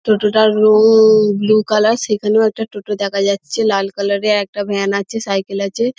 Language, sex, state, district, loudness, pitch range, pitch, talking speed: Bengali, female, West Bengal, Dakshin Dinajpur, -14 LUFS, 200-220 Hz, 210 Hz, 180 wpm